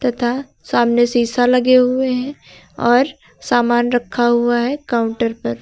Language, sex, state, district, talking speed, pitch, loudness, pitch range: Hindi, female, Uttar Pradesh, Lucknow, 140 wpm, 240 Hz, -16 LUFS, 240-250 Hz